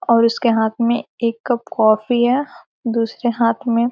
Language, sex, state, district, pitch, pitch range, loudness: Hindi, female, Bihar, Gopalganj, 235 Hz, 230-240 Hz, -18 LUFS